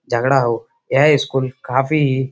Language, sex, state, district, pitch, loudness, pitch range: Hindi, male, Uttar Pradesh, Budaun, 140 Hz, -17 LUFS, 135-155 Hz